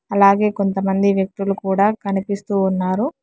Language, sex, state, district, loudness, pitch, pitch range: Telugu, male, Telangana, Hyderabad, -18 LUFS, 200 Hz, 195-200 Hz